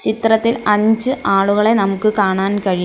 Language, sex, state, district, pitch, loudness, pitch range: Malayalam, female, Kerala, Kollam, 210 Hz, -15 LUFS, 195-225 Hz